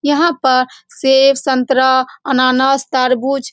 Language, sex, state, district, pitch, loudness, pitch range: Hindi, female, Bihar, Saran, 265 Hz, -13 LUFS, 255-275 Hz